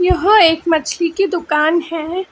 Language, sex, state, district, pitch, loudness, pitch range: Hindi, female, Karnataka, Bangalore, 340 Hz, -15 LUFS, 320-365 Hz